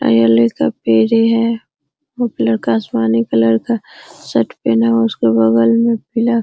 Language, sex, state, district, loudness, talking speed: Hindi, female, Bihar, Araria, -14 LUFS, 140 wpm